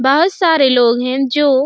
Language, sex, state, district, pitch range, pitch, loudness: Hindi, female, Uttar Pradesh, Budaun, 260-295 Hz, 270 Hz, -13 LUFS